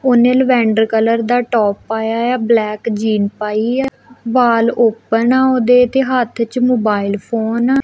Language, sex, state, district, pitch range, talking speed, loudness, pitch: Punjabi, female, Punjab, Kapurthala, 220-250 Hz, 160 wpm, -14 LUFS, 235 Hz